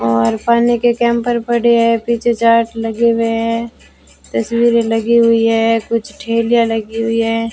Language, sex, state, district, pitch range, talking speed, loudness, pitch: Hindi, female, Rajasthan, Bikaner, 225-235 Hz, 150 wpm, -14 LUFS, 230 Hz